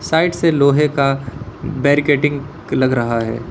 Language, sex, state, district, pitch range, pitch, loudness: Hindi, male, Uttar Pradesh, Lalitpur, 130-150 Hz, 140 Hz, -16 LUFS